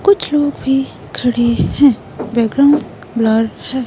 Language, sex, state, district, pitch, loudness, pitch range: Hindi, female, Himachal Pradesh, Shimla, 260 Hz, -15 LUFS, 230-285 Hz